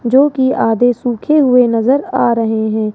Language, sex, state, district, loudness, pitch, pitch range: Hindi, female, Rajasthan, Jaipur, -13 LUFS, 245 Hz, 225-260 Hz